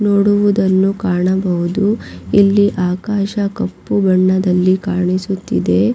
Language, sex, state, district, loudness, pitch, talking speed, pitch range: Kannada, female, Karnataka, Raichur, -15 LUFS, 190 Hz, 70 wpm, 185-205 Hz